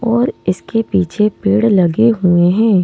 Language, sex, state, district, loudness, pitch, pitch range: Hindi, male, Madhya Pradesh, Bhopal, -14 LUFS, 210 Hz, 180-225 Hz